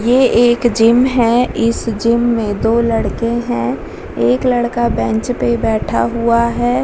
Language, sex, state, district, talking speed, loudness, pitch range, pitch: Hindi, female, Bihar, Vaishali, 150 wpm, -14 LUFS, 225-240 Hz, 235 Hz